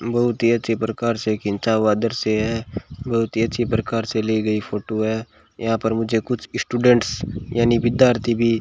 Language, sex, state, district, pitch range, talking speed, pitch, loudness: Hindi, male, Rajasthan, Bikaner, 110-120 Hz, 195 wpm, 115 Hz, -21 LUFS